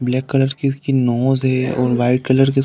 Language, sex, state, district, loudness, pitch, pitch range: Hindi, male, Uttar Pradesh, Deoria, -17 LUFS, 130 Hz, 125-135 Hz